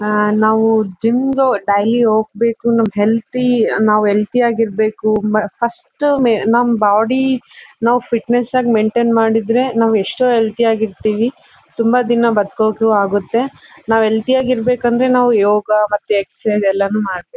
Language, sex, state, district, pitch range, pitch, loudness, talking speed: Kannada, female, Karnataka, Bellary, 215-240 Hz, 225 Hz, -15 LUFS, 130 wpm